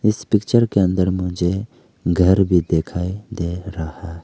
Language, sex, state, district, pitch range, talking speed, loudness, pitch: Hindi, male, Arunachal Pradesh, Lower Dibang Valley, 85-105 Hz, 140 wpm, -19 LUFS, 90 Hz